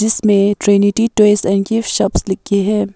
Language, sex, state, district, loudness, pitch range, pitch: Hindi, female, Arunachal Pradesh, Papum Pare, -14 LUFS, 200-220 Hz, 205 Hz